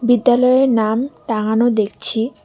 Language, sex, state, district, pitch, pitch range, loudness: Bengali, female, West Bengal, Alipurduar, 240 Hz, 220-250 Hz, -16 LUFS